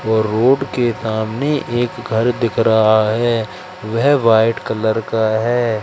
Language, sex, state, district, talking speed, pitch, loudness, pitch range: Hindi, male, Madhya Pradesh, Katni, 145 wpm, 115 Hz, -16 LUFS, 110-120 Hz